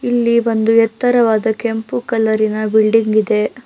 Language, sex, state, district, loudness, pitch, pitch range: Kannada, female, Karnataka, Bangalore, -15 LUFS, 225 Hz, 215-235 Hz